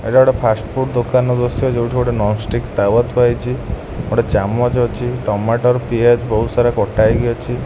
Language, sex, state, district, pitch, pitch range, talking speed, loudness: Odia, male, Odisha, Khordha, 120 Hz, 110-125 Hz, 180 wpm, -16 LUFS